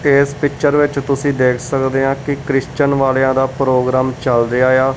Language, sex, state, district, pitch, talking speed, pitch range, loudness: Punjabi, male, Punjab, Kapurthala, 135 Hz, 180 wpm, 130-140 Hz, -15 LUFS